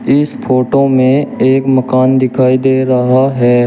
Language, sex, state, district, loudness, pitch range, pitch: Hindi, male, Uttar Pradesh, Shamli, -11 LUFS, 130-135 Hz, 130 Hz